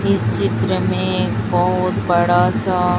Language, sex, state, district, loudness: Hindi, female, Chhattisgarh, Raipur, -17 LUFS